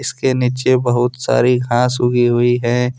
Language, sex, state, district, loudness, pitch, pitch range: Hindi, male, Jharkhand, Deoghar, -15 LUFS, 125 Hz, 120-125 Hz